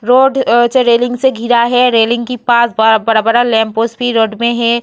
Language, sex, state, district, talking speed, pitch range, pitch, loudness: Hindi, female, Bihar, Vaishali, 210 wpm, 225-245 Hz, 235 Hz, -11 LUFS